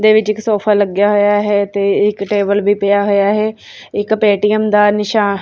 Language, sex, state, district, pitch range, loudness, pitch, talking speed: Punjabi, female, Punjab, Kapurthala, 200-215 Hz, -14 LUFS, 205 Hz, 200 wpm